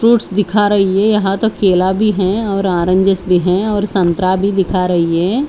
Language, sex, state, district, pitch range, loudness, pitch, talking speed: Hindi, female, Haryana, Charkhi Dadri, 185-210 Hz, -14 LUFS, 195 Hz, 210 wpm